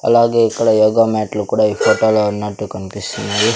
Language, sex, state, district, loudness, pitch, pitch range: Telugu, male, Andhra Pradesh, Sri Satya Sai, -15 LUFS, 110 Hz, 105-115 Hz